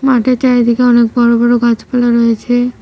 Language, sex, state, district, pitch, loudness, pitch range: Bengali, female, West Bengal, Cooch Behar, 240 Hz, -11 LUFS, 235-245 Hz